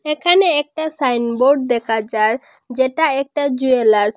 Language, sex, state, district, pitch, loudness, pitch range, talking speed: Bengali, female, Assam, Hailakandi, 260 Hz, -16 LUFS, 235-295 Hz, 130 wpm